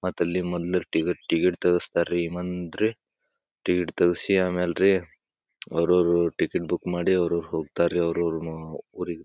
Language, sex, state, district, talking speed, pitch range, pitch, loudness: Kannada, male, Karnataka, Bijapur, 125 wpm, 85-90 Hz, 90 Hz, -25 LUFS